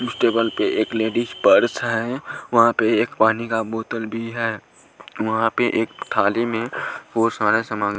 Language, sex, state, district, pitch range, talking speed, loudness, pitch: Hindi, male, Punjab, Pathankot, 110-115 Hz, 165 wpm, -20 LUFS, 115 Hz